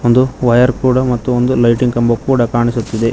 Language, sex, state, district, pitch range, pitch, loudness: Kannada, male, Karnataka, Koppal, 120-130 Hz, 120 Hz, -13 LUFS